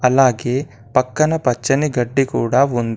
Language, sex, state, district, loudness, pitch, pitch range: Telugu, male, Telangana, Komaram Bheem, -17 LUFS, 125 Hz, 120-135 Hz